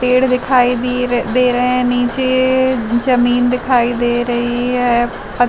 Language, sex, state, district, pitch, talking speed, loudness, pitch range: Hindi, female, Uttar Pradesh, Gorakhpur, 245 Hz, 155 wpm, -15 LUFS, 240-250 Hz